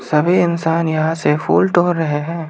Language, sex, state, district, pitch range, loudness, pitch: Hindi, male, Arunachal Pradesh, Lower Dibang Valley, 155-175 Hz, -16 LUFS, 165 Hz